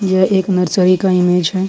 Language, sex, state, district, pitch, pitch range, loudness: Hindi, female, Jharkhand, Ranchi, 185 Hz, 180-190 Hz, -14 LUFS